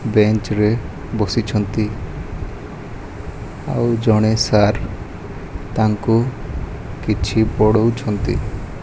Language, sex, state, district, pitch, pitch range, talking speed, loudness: Odia, male, Odisha, Malkangiri, 105 Hz, 100-110 Hz, 60 wpm, -19 LUFS